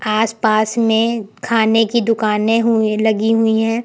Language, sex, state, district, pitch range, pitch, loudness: Hindi, female, Uttar Pradesh, Lucknow, 215-230 Hz, 225 Hz, -16 LUFS